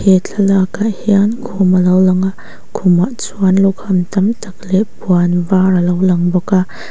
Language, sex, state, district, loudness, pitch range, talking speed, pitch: Mizo, female, Mizoram, Aizawl, -13 LUFS, 185-200 Hz, 175 wpm, 190 Hz